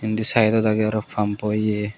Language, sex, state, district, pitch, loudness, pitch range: Chakma, male, Tripura, West Tripura, 110 Hz, -20 LUFS, 105-110 Hz